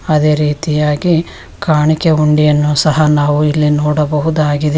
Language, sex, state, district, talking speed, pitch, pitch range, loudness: Kannada, female, Karnataka, Bangalore, 100 wpm, 150 Hz, 150-155 Hz, -12 LUFS